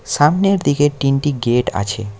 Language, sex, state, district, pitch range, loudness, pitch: Bengali, male, West Bengal, Alipurduar, 115-145 Hz, -16 LUFS, 140 Hz